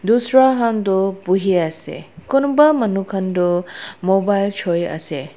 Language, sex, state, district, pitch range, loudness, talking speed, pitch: Nagamese, female, Nagaland, Dimapur, 180-230 Hz, -17 LUFS, 80 wpm, 195 Hz